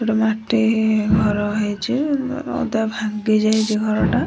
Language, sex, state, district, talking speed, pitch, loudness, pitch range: Odia, male, Odisha, Nuapada, 110 wpm, 215 Hz, -19 LUFS, 210-220 Hz